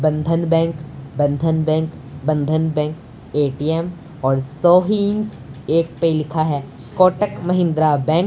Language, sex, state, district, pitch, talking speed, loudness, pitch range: Hindi, male, Punjab, Pathankot, 155 Hz, 125 wpm, -19 LUFS, 145-165 Hz